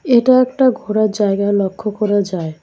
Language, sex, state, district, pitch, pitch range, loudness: Bengali, female, West Bengal, Cooch Behar, 210 Hz, 200-245 Hz, -15 LUFS